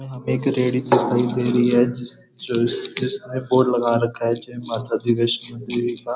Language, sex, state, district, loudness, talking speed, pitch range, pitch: Hindi, male, Uttar Pradesh, Muzaffarnagar, -21 LUFS, 195 wpm, 120-125 Hz, 120 Hz